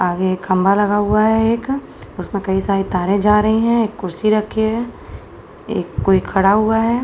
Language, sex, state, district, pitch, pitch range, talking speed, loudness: Hindi, female, Uttar Pradesh, Jalaun, 210 Hz, 195-225 Hz, 215 wpm, -17 LUFS